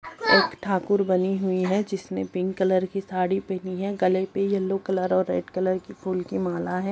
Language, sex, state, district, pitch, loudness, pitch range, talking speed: Hindi, female, Bihar, Kishanganj, 185 Hz, -25 LUFS, 185-195 Hz, 210 wpm